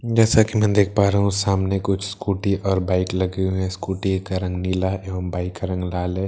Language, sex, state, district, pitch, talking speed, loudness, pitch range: Hindi, male, Bihar, Katihar, 95 Hz, 240 wpm, -21 LUFS, 95-100 Hz